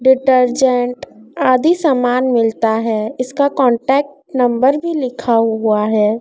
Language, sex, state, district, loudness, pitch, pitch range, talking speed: Hindi, female, Madhya Pradesh, Dhar, -15 LUFS, 250 Hz, 225-270 Hz, 115 wpm